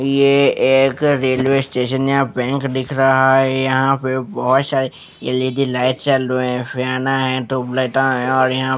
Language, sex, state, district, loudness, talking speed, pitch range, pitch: Hindi, male, Bihar, West Champaran, -17 LUFS, 165 wpm, 130-135 Hz, 130 Hz